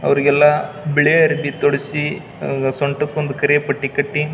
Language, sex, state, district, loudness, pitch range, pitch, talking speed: Kannada, male, Karnataka, Belgaum, -17 LUFS, 140-150 Hz, 145 Hz, 125 wpm